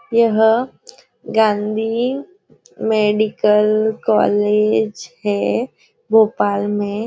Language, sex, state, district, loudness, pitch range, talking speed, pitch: Hindi, female, Maharashtra, Nagpur, -17 LUFS, 210-230 Hz, 60 wpm, 220 Hz